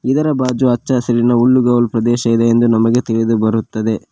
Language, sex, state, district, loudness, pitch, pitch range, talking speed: Kannada, male, Karnataka, Koppal, -14 LUFS, 120 Hz, 115-125 Hz, 160 wpm